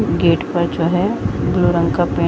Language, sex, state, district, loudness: Hindi, female, Jharkhand, Sahebganj, -17 LUFS